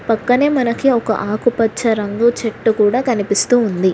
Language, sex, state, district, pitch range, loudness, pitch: Telugu, female, Telangana, Hyderabad, 210-245 Hz, -16 LUFS, 225 Hz